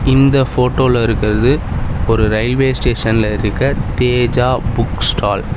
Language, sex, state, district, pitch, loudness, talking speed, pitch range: Tamil, male, Tamil Nadu, Chennai, 120 Hz, -15 LUFS, 120 wpm, 110-130 Hz